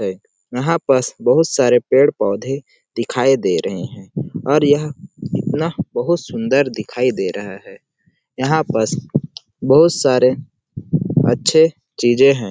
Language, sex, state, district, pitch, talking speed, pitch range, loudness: Hindi, male, Chhattisgarh, Sarguja, 140 Hz, 135 wpm, 125-160 Hz, -17 LUFS